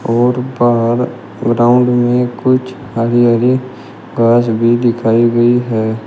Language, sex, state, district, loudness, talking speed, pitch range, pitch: Hindi, male, Uttar Pradesh, Shamli, -13 LUFS, 120 wpm, 115-125 Hz, 120 Hz